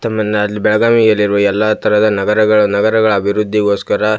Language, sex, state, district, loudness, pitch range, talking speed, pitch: Kannada, male, Karnataka, Belgaum, -13 LUFS, 105-110 Hz, 130 wpm, 105 Hz